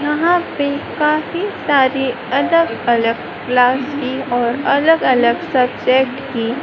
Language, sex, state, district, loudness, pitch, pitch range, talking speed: Hindi, female, Madhya Pradesh, Dhar, -16 LUFS, 270 Hz, 250-300 Hz, 120 wpm